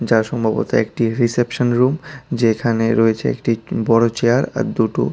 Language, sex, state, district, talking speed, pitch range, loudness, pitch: Bengali, male, Tripura, West Tripura, 140 wpm, 115-125 Hz, -18 LUFS, 115 Hz